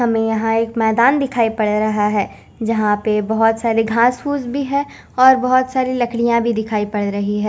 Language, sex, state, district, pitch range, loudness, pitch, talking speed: Hindi, female, Chandigarh, Chandigarh, 215-250 Hz, -17 LUFS, 225 Hz, 200 wpm